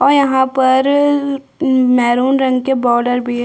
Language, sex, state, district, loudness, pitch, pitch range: Hindi, female, Chhattisgarh, Bastar, -14 LUFS, 265 Hz, 250-275 Hz